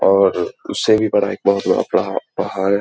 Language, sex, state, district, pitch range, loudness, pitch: Hindi, male, Bihar, Lakhisarai, 100-105 Hz, -18 LUFS, 100 Hz